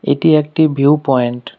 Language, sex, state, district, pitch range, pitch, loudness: Bengali, male, West Bengal, Alipurduar, 130-155 Hz, 145 Hz, -13 LUFS